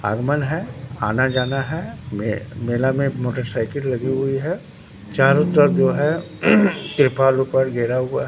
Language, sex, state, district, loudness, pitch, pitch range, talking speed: Hindi, male, Bihar, Katihar, -20 LUFS, 130 Hz, 125-145 Hz, 150 wpm